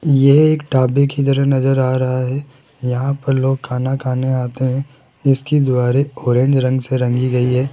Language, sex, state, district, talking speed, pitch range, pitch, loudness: Hindi, male, Rajasthan, Jaipur, 185 wpm, 130-140 Hz, 130 Hz, -16 LUFS